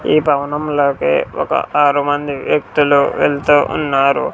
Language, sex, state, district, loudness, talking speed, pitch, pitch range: Telugu, male, Andhra Pradesh, Sri Satya Sai, -15 LUFS, 110 wpm, 145 Hz, 140-150 Hz